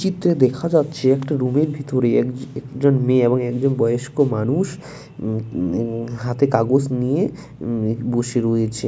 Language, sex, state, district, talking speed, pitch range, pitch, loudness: Bengali, male, West Bengal, Dakshin Dinajpur, 155 wpm, 120-140 Hz, 130 Hz, -20 LUFS